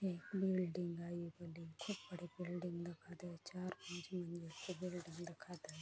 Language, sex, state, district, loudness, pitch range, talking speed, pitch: Chhattisgarhi, female, Chhattisgarh, Bastar, -46 LUFS, 170-180 Hz, 125 wpm, 175 Hz